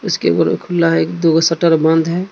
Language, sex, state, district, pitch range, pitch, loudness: Hindi, male, Jharkhand, Deoghar, 165-170 Hz, 165 Hz, -14 LUFS